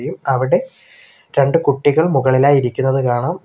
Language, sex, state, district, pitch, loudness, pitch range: Malayalam, male, Kerala, Kollam, 140 Hz, -16 LUFS, 135-165 Hz